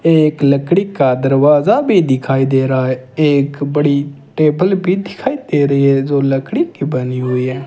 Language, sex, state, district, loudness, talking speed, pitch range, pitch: Hindi, male, Rajasthan, Bikaner, -14 LUFS, 180 wpm, 135-155 Hz, 140 Hz